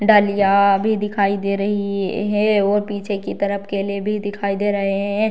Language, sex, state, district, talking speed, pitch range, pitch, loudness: Hindi, female, Bihar, Darbhanga, 180 wpm, 200-205 Hz, 200 Hz, -19 LUFS